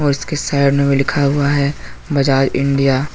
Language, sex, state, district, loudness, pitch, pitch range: Hindi, male, Jharkhand, Deoghar, -16 LUFS, 140 Hz, 135-140 Hz